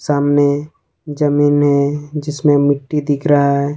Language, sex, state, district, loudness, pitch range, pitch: Hindi, male, Jharkhand, Ranchi, -15 LUFS, 145-150 Hz, 145 Hz